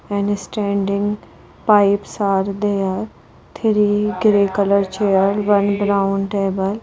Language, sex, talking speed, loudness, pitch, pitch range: English, female, 105 wpm, -18 LUFS, 200 Hz, 195-205 Hz